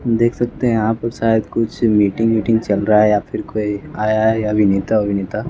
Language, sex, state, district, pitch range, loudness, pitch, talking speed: Hindi, male, Bihar, West Champaran, 105-115 Hz, -17 LUFS, 110 Hz, 220 wpm